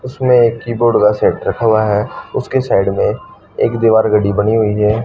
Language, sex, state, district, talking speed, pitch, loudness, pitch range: Hindi, female, Haryana, Charkhi Dadri, 190 wpm, 115 Hz, -14 LUFS, 105-120 Hz